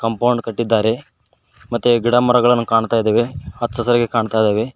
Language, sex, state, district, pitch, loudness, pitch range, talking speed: Kannada, male, Karnataka, Koppal, 115 Hz, -17 LUFS, 115-120 Hz, 115 wpm